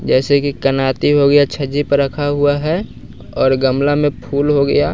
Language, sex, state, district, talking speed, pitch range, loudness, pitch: Hindi, male, Bihar, West Champaran, 195 wpm, 140-145 Hz, -15 LUFS, 145 Hz